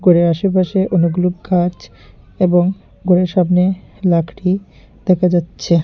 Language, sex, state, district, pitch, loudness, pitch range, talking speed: Bengali, male, Tripura, Unakoti, 180 Hz, -16 LUFS, 170-185 Hz, 105 wpm